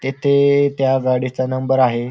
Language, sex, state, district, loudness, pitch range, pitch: Marathi, male, Maharashtra, Pune, -17 LUFS, 130-140 Hz, 130 Hz